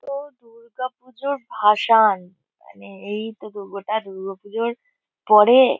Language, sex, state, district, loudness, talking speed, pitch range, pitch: Bengali, female, West Bengal, Kolkata, -20 LUFS, 105 wpm, 200-255 Hz, 220 Hz